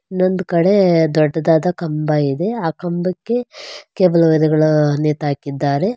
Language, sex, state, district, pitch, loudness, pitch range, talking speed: Kannada, female, Karnataka, Bangalore, 165 Hz, -16 LUFS, 155-185 Hz, 100 wpm